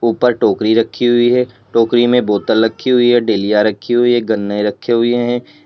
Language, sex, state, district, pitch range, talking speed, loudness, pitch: Hindi, male, Uttar Pradesh, Lalitpur, 110-120 Hz, 200 wpm, -14 LUFS, 120 Hz